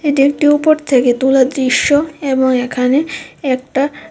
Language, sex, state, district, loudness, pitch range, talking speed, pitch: Bengali, female, Tripura, West Tripura, -14 LUFS, 255-295 Hz, 130 wpm, 270 Hz